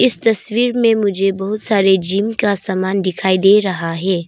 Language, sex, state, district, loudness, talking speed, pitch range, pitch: Hindi, female, Arunachal Pradesh, Papum Pare, -15 LUFS, 180 wpm, 190-210 Hz, 195 Hz